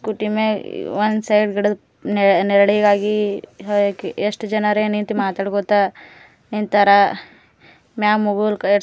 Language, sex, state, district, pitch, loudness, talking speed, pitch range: Kannada, female, Karnataka, Gulbarga, 210 Hz, -18 LUFS, 75 wpm, 200-210 Hz